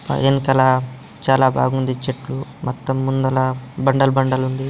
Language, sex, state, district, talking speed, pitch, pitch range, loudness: Telugu, male, Telangana, Nalgonda, 125 wpm, 130 Hz, 130-135 Hz, -19 LUFS